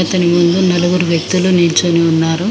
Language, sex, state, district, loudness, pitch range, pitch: Telugu, female, Telangana, Mahabubabad, -12 LUFS, 170-180 Hz, 175 Hz